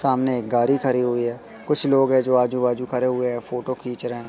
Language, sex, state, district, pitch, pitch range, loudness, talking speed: Hindi, male, Madhya Pradesh, Katni, 125 Hz, 120-130 Hz, -20 LUFS, 265 wpm